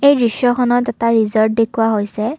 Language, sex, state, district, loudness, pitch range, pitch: Assamese, female, Assam, Kamrup Metropolitan, -15 LUFS, 220-245 Hz, 230 Hz